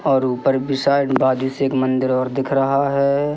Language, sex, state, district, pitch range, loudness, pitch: Hindi, male, Madhya Pradesh, Katni, 130-140 Hz, -18 LUFS, 135 Hz